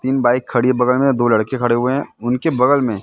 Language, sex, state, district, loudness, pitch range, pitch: Hindi, male, Madhya Pradesh, Katni, -16 LUFS, 120-130 Hz, 125 Hz